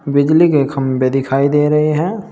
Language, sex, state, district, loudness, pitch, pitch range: Hindi, male, Uttar Pradesh, Saharanpur, -14 LUFS, 145 Hz, 135-155 Hz